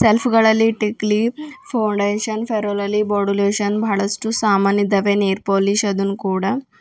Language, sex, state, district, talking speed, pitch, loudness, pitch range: Kannada, female, Karnataka, Bidar, 140 wpm, 210 Hz, -18 LUFS, 200-220 Hz